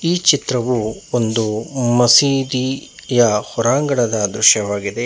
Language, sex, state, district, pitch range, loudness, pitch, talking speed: Kannada, male, Karnataka, Bangalore, 110-135 Hz, -16 LUFS, 120 Hz, 60 wpm